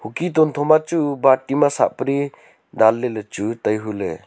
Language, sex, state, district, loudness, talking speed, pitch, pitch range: Wancho, male, Arunachal Pradesh, Longding, -19 LUFS, 210 wpm, 140 Hz, 110-155 Hz